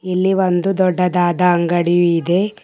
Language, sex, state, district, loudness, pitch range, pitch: Kannada, female, Karnataka, Bidar, -16 LUFS, 175-185 Hz, 180 Hz